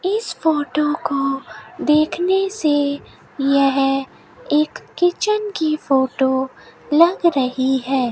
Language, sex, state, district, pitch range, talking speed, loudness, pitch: Hindi, female, Rajasthan, Bikaner, 265-335 Hz, 95 wpm, -19 LUFS, 290 Hz